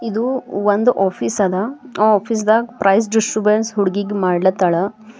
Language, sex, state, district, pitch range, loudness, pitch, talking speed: Kannada, female, Karnataka, Bidar, 195-225 Hz, -17 LUFS, 210 Hz, 125 wpm